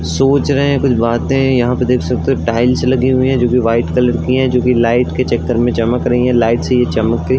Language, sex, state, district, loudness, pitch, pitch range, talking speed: Hindi, male, Uttar Pradesh, Varanasi, -13 LUFS, 125 Hz, 120-130 Hz, 270 wpm